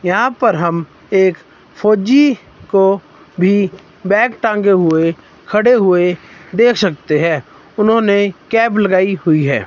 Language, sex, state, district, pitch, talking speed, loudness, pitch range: Hindi, male, Himachal Pradesh, Shimla, 195 Hz, 125 wpm, -14 LUFS, 170-215 Hz